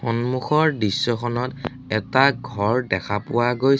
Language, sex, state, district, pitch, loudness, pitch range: Assamese, male, Assam, Sonitpur, 120 Hz, -21 LUFS, 110-130 Hz